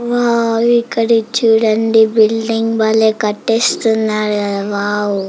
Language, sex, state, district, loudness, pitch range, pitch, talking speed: Telugu, female, Andhra Pradesh, Chittoor, -14 LUFS, 215-230 Hz, 225 Hz, 100 wpm